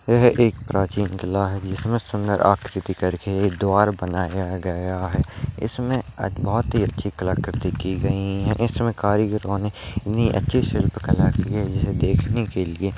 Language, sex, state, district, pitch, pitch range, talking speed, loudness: Hindi, male, Rajasthan, Nagaur, 100 Hz, 95-115 Hz, 160 wpm, -22 LUFS